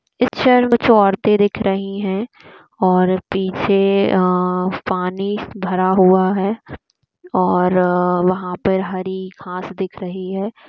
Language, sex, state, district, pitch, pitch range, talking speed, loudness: Hindi, female, Bihar, East Champaran, 190 Hz, 185-200 Hz, 125 wpm, -17 LUFS